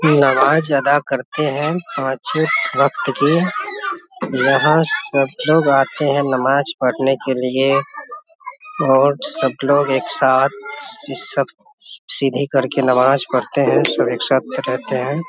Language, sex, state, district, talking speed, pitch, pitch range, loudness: Hindi, male, Bihar, Samastipur, 135 wpm, 140 Hz, 135-165 Hz, -17 LUFS